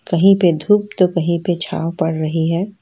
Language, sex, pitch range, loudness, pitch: Hindi, female, 165-195 Hz, -16 LUFS, 175 Hz